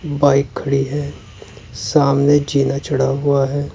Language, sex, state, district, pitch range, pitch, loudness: Hindi, male, Uttar Pradesh, Saharanpur, 135-145 Hz, 140 Hz, -17 LUFS